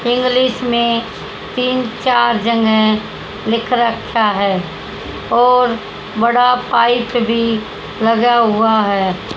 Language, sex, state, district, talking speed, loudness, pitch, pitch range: Hindi, female, Haryana, Charkhi Dadri, 95 wpm, -15 LUFS, 230 Hz, 220-245 Hz